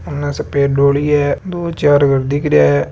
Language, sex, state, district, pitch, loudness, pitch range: Marwari, male, Rajasthan, Nagaur, 145 Hz, -14 LUFS, 140-150 Hz